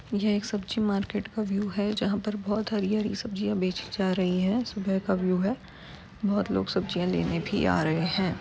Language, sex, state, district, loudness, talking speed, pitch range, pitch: Hindi, female, Uttar Pradesh, Varanasi, -28 LUFS, 215 wpm, 185-210 Hz, 200 Hz